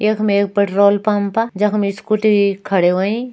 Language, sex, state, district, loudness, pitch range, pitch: Hindi, male, Uttarakhand, Uttarkashi, -16 LUFS, 200-215 Hz, 205 Hz